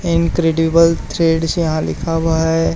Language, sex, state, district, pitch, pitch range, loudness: Hindi, male, Haryana, Charkhi Dadri, 165 Hz, 160-165 Hz, -16 LUFS